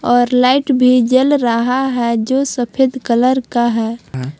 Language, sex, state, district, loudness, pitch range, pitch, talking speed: Hindi, female, Jharkhand, Palamu, -14 LUFS, 235-260 Hz, 250 Hz, 150 wpm